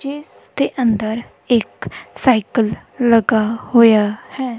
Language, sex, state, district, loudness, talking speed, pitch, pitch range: Punjabi, female, Punjab, Kapurthala, -16 LUFS, 105 wpm, 230 Hz, 220-255 Hz